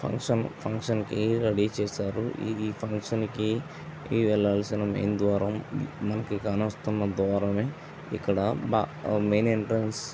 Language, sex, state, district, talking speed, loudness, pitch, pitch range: Telugu, male, Andhra Pradesh, Visakhapatnam, 110 wpm, -28 LUFS, 110 Hz, 105-115 Hz